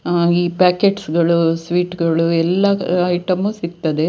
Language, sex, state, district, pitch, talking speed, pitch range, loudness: Kannada, female, Karnataka, Dakshina Kannada, 175 Hz, 130 wpm, 170-180 Hz, -17 LUFS